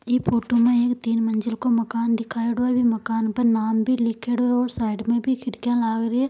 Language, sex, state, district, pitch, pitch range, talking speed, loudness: Marwari, female, Rajasthan, Nagaur, 235 Hz, 230-245 Hz, 230 wpm, -22 LUFS